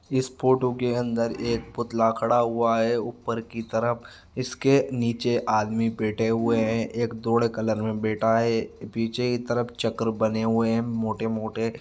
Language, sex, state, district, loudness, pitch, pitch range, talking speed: Marwari, male, Rajasthan, Nagaur, -25 LUFS, 115 Hz, 115-120 Hz, 165 wpm